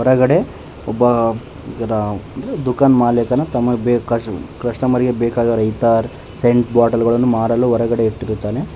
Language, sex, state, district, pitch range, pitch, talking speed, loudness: Kannada, male, Karnataka, Bangalore, 115-125 Hz, 120 Hz, 115 wpm, -16 LUFS